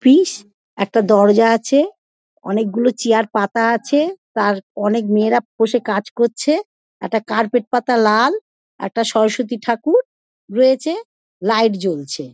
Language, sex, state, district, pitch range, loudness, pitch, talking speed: Bengali, female, West Bengal, Dakshin Dinajpur, 210-260 Hz, -17 LUFS, 230 Hz, 125 wpm